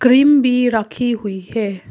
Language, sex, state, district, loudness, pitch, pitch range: Hindi, female, Arunachal Pradesh, Papum Pare, -16 LUFS, 235 Hz, 205-250 Hz